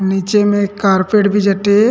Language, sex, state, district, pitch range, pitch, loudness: Chhattisgarhi, male, Chhattisgarh, Rajnandgaon, 195-205 Hz, 200 Hz, -13 LUFS